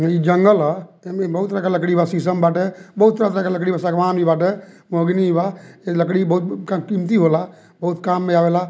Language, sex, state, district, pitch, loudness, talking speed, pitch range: Bhojpuri, male, Bihar, Muzaffarpur, 180 Hz, -18 LUFS, 180 wpm, 170-190 Hz